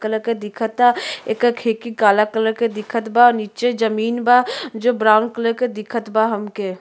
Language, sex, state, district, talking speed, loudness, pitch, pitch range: Bhojpuri, female, Uttar Pradesh, Gorakhpur, 195 wpm, -18 LUFS, 225 Hz, 215-240 Hz